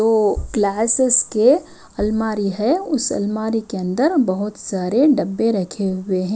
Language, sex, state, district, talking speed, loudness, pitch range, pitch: Hindi, female, Himachal Pradesh, Shimla, 140 wpm, -18 LUFS, 200-240 Hz, 215 Hz